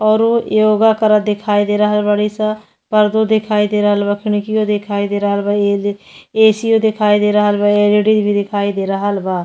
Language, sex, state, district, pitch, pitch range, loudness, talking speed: Bhojpuri, female, Uttar Pradesh, Deoria, 210 Hz, 205-215 Hz, -14 LUFS, 190 wpm